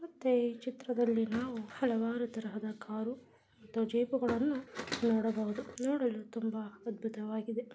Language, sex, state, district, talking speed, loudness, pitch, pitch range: Kannada, female, Karnataka, Bijapur, 100 wpm, -35 LUFS, 235 Hz, 220-245 Hz